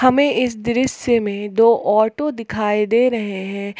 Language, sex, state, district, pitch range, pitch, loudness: Hindi, female, Jharkhand, Palamu, 210-250 Hz, 230 Hz, -18 LUFS